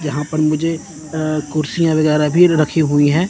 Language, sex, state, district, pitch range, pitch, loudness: Hindi, male, Chandigarh, Chandigarh, 150-160 Hz, 155 Hz, -16 LUFS